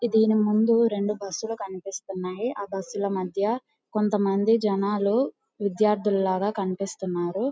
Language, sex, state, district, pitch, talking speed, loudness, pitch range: Telugu, female, Andhra Pradesh, Guntur, 205 Hz, 120 wpm, -25 LUFS, 195-220 Hz